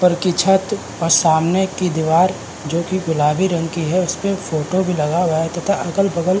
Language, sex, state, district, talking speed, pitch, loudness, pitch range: Hindi, male, Uttarakhand, Uttarkashi, 235 wpm, 175 Hz, -18 LUFS, 165-190 Hz